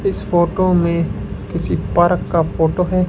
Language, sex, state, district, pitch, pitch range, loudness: Hindi, male, Rajasthan, Bikaner, 175 Hz, 170-180 Hz, -17 LUFS